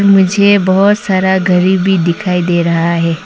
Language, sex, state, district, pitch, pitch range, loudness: Hindi, female, Arunachal Pradesh, Lower Dibang Valley, 185 Hz, 170-195 Hz, -11 LUFS